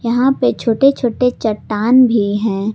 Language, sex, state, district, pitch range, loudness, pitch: Hindi, female, Jharkhand, Palamu, 215-250 Hz, -14 LUFS, 235 Hz